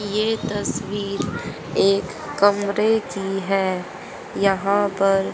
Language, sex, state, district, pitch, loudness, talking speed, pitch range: Hindi, female, Haryana, Jhajjar, 200 Hz, -21 LUFS, 90 wpm, 195-205 Hz